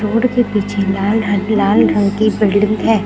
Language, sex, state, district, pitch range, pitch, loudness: Hindi, female, Uttar Pradesh, Lucknow, 200-220 Hz, 210 Hz, -14 LUFS